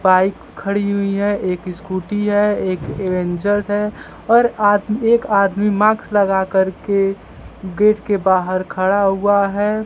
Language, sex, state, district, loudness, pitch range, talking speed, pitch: Hindi, male, Bihar, Kaimur, -17 LUFS, 190-205 Hz, 140 wpm, 200 Hz